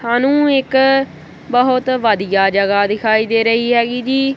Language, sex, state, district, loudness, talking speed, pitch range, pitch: Punjabi, female, Punjab, Kapurthala, -14 LUFS, 135 wpm, 220-265 Hz, 240 Hz